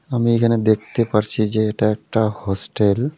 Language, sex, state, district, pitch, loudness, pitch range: Bengali, male, West Bengal, Alipurduar, 110 Hz, -19 LUFS, 105-115 Hz